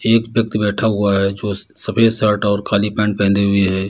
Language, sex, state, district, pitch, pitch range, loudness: Hindi, male, Uttar Pradesh, Lalitpur, 105 Hz, 100-110 Hz, -17 LUFS